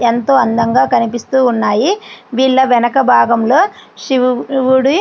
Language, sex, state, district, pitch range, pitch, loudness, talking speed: Telugu, female, Andhra Pradesh, Srikakulam, 235-270 Hz, 255 Hz, -12 LUFS, 120 wpm